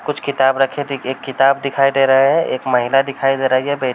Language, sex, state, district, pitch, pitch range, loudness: Hindi, male, Uttar Pradesh, Varanasi, 135 Hz, 135-140 Hz, -16 LUFS